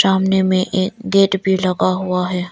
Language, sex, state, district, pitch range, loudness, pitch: Hindi, female, Arunachal Pradesh, Lower Dibang Valley, 185-190 Hz, -17 LUFS, 190 Hz